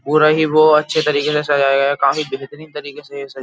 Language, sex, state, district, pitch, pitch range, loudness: Hindi, male, Uttar Pradesh, Jyotiba Phule Nagar, 150 Hz, 140-155 Hz, -15 LUFS